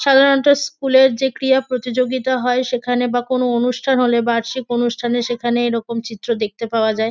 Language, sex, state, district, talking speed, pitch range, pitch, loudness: Bengali, female, West Bengal, North 24 Parganas, 170 wpm, 235-260 Hz, 245 Hz, -17 LUFS